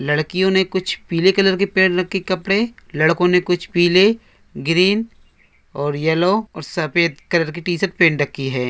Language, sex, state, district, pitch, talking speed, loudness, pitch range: Hindi, male, Andhra Pradesh, Anantapur, 175 Hz, 165 wpm, -18 LUFS, 155-190 Hz